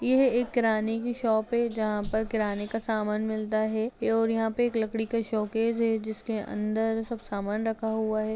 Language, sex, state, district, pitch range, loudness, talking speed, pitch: Hindi, female, Bihar, Gaya, 215-230 Hz, -28 LUFS, 195 wpm, 220 Hz